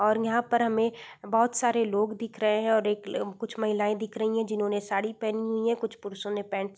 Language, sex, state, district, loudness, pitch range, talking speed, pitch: Hindi, female, Uttar Pradesh, Deoria, -28 LUFS, 210-225 Hz, 240 wpm, 220 Hz